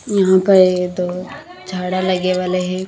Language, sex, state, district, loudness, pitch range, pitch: Hindi, female, Haryana, Rohtak, -16 LUFS, 180-190 Hz, 185 Hz